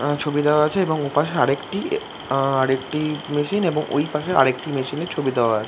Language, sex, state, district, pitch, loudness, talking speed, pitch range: Bengali, male, West Bengal, Kolkata, 145 Hz, -21 LUFS, 190 wpm, 135-155 Hz